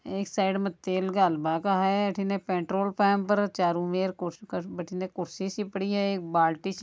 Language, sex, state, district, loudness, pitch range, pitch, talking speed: Marwari, male, Rajasthan, Nagaur, -28 LUFS, 180-200 Hz, 190 Hz, 195 wpm